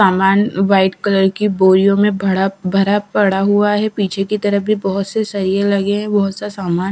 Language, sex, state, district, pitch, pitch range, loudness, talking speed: Hindi, female, Bihar, Katihar, 200 Hz, 195-205 Hz, -15 LUFS, 200 wpm